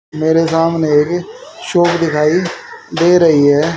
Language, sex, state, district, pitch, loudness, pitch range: Hindi, male, Haryana, Jhajjar, 165 Hz, -13 LUFS, 155-175 Hz